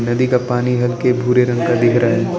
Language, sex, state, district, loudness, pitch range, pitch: Hindi, male, Arunachal Pradesh, Lower Dibang Valley, -15 LUFS, 120-125 Hz, 125 Hz